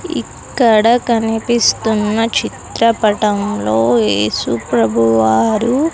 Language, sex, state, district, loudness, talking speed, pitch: Telugu, female, Andhra Pradesh, Sri Satya Sai, -14 LUFS, 50 wpm, 215 Hz